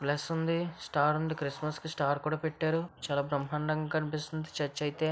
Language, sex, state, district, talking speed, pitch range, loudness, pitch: Telugu, female, Andhra Pradesh, Visakhapatnam, 165 wpm, 145-160 Hz, -33 LUFS, 155 Hz